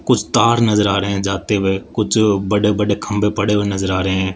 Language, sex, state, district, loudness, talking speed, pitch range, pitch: Hindi, male, Rajasthan, Jaipur, -17 LUFS, 235 wpm, 95-105 Hz, 105 Hz